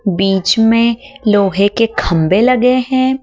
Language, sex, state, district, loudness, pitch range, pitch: Hindi, female, Madhya Pradesh, Dhar, -13 LUFS, 195-250 Hz, 225 Hz